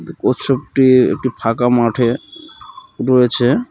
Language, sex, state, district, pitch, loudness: Bengali, male, West Bengal, Cooch Behar, 130 Hz, -15 LUFS